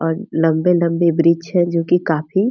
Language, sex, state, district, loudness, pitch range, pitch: Hindi, female, Bihar, Purnia, -16 LUFS, 165-175 Hz, 170 Hz